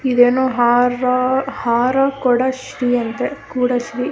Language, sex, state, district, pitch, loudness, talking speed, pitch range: Kannada, female, Karnataka, Gulbarga, 250 Hz, -17 LUFS, 115 wpm, 245-260 Hz